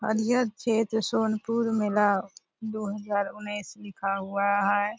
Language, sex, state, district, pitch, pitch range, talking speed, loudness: Hindi, female, Bihar, Purnia, 210 Hz, 200-220 Hz, 145 wpm, -27 LUFS